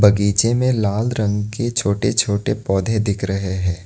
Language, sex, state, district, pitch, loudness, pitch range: Hindi, male, Assam, Kamrup Metropolitan, 105 Hz, -19 LUFS, 100-115 Hz